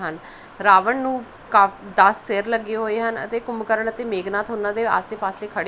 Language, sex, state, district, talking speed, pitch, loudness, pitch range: Punjabi, female, Punjab, Pathankot, 170 wpm, 215 Hz, -21 LUFS, 200-230 Hz